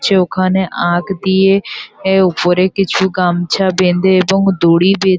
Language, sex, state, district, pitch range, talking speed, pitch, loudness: Bengali, female, West Bengal, Kolkata, 180-190 Hz, 140 wpm, 190 Hz, -13 LUFS